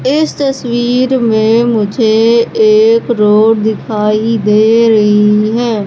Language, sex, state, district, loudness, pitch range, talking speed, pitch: Hindi, female, Madhya Pradesh, Katni, -10 LUFS, 215-240 Hz, 100 wpm, 225 Hz